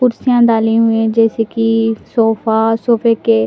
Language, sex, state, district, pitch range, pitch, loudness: Hindi, female, Delhi, New Delhi, 225-230 Hz, 225 Hz, -13 LUFS